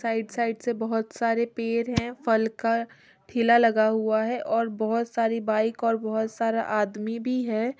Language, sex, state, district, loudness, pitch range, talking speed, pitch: Hindi, female, Bihar, Muzaffarpur, -25 LUFS, 220-235 Hz, 160 wpm, 230 Hz